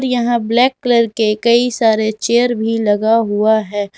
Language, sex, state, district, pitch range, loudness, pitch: Hindi, female, Jharkhand, Garhwa, 215-240 Hz, -14 LUFS, 225 Hz